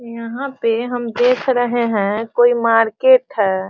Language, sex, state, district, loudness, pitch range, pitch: Hindi, female, Bihar, Sitamarhi, -16 LUFS, 225-245 Hz, 235 Hz